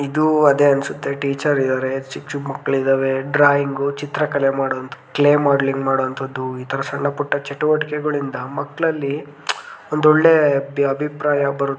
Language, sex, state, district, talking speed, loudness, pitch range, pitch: Kannada, male, Karnataka, Gulbarga, 120 wpm, -19 LUFS, 135-145 Hz, 140 Hz